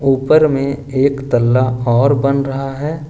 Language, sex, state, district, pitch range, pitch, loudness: Hindi, male, Jharkhand, Ranchi, 130-140 Hz, 135 Hz, -15 LUFS